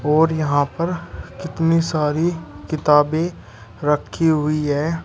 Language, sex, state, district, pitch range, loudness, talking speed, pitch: Hindi, male, Uttar Pradesh, Shamli, 150-165 Hz, -19 LUFS, 105 wpm, 155 Hz